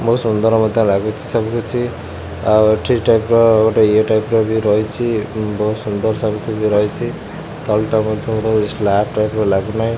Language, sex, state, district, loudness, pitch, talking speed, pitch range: Odia, male, Odisha, Khordha, -16 LUFS, 110 Hz, 150 wpm, 105-115 Hz